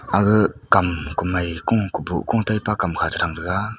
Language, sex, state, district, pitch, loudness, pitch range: Wancho, female, Arunachal Pradesh, Longding, 95 Hz, -21 LUFS, 85-105 Hz